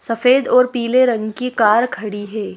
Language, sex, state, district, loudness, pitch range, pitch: Hindi, female, Madhya Pradesh, Bhopal, -16 LUFS, 215-250 Hz, 235 Hz